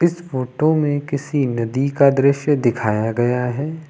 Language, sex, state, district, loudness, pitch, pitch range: Hindi, male, Uttar Pradesh, Lucknow, -19 LUFS, 140 Hz, 125-150 Hz